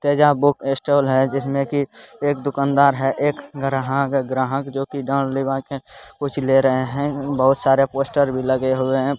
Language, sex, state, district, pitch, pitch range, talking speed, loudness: Hindi, male, Bihar, Supaul, 135 Hz, 135-140 Hz, 175 wpm, -20 LUFS